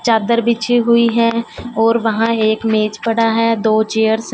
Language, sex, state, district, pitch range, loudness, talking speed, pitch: Hindi, female, Punjab, Fazilka, 220-235 Hz, -15 LUFS, 180 wpm, 225 Hz